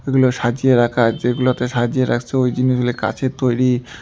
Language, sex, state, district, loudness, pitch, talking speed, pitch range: Bengali, male, West Bengal, Alipurduar, -17 LUFS, 125 Hz, 165 wpm, 120-130 Hz